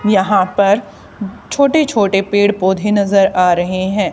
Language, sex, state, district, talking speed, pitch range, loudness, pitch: Hindi, female, Haryana, Charkhi Dadri, 145 wpm, 190-210 Hz, -14 LUFS, 200 Hz